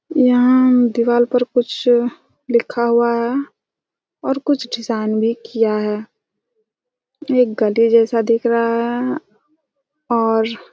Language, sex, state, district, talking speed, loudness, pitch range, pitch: Hindi, female, Chhattisgarh, Raigarh, 110 wpm, -17 LUFS, 230-260 Hz, 240 Hz